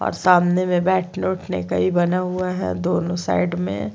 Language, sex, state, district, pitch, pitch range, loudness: Hindi, female, Chhattisgarh, Sukma, 180 Hz, 175-185 Hz, -20 LUFS